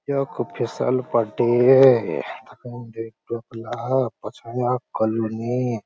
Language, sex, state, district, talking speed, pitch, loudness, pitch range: Garhwali, male, Uttarakhand, Uttarkashi, 100 wpm, 120 Hz, -21 LUFS, 115-125 Hz